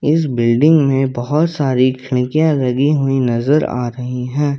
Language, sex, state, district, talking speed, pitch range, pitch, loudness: Hindi, male, Jharkhand, Ranchi, 155 wpm, 125-150 Hz, 135 Hz, -15 LUFS